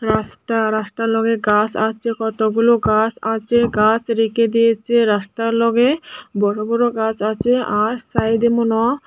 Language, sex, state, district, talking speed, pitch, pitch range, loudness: Bengali, female, Tripura, Dhalai, 140 wpm, 225 Hz, 215-235 Hz, -17 LUFS